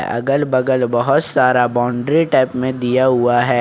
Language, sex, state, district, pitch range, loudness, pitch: Hindi, male, Jharkhand, Ranchi, 120-130 Hz, -16 LUFS, 125 Hz